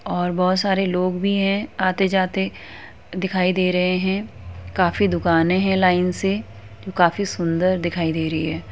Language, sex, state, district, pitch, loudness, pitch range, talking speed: Hindi, female, Uttar Pradesh, Etah, 180 Hz, -20 LUFS, 165-190 Hz, 160 wpm